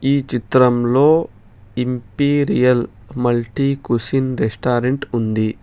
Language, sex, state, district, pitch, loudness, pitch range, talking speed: Telugu, male, Telangana, Hyderabad, 125 Hz, -18 LUFS, 115-135 Hz, 75 wpm